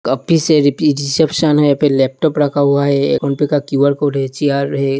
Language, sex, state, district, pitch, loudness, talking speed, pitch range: Hindi, male, Uttar Pradesh, Hamirpur, 140 Hz, -14 LUFS, 180 wpm, 140-150 Hz